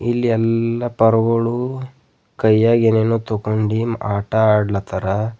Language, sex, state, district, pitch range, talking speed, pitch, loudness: Kannada, male, Karnataka, Bidar, 110-115 Hz, 90 wpm, 115 Hz, -18 LUFS